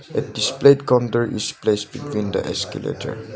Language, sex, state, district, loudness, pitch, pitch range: English, male, Nagaland, Dimapur, -20 LUFS, 120 Hz, 105-140 Hz